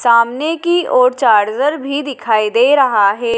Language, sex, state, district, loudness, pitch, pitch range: Hindi, female, Madhya Pradesh, Dhar, -13 LUFS, 260 Hz, 230-300 Hz